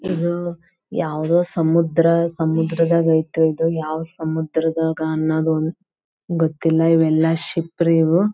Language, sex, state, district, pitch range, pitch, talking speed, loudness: Kannada, female, Karnataka, Belgaum, 160-170 Hz, 165 Hz, 85 wpm, -19 LUFS